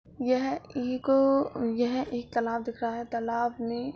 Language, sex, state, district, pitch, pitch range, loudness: Hindi, female, Uttar Pradesh, Budaun, 240 Hz, 235-260 Hz, -29 LUFS